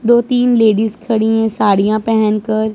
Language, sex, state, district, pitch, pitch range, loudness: Hindi, female, Punjab, Pathankot, 220 Hz, 215-225 Hz, -14 LUFS